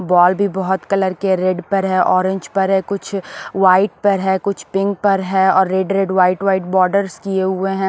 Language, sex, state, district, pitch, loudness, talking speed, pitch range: Hindi, female, Maharashtra, Washim, 190 Hz, -16 LUFS, 220 wpm, 190-195 Hz